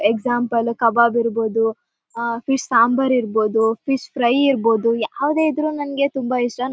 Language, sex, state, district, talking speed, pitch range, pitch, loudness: Kannada, female, Karnataka, Mysore, 145 wpm, 230-270 Hz, 240 Hz, -19 LUFS